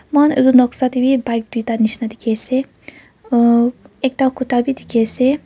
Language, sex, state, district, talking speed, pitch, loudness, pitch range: Nagamese, female, Nagaland, Kohima, 165 wpm, 250 Hz, -15 LUFS, 230-260 Hz